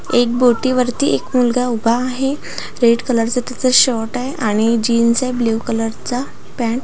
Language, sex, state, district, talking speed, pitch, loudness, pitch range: Marathi, female, Maharashtra, Pune, 165 wpm, 245 Hz, -16 LUFS, 230-255 Hz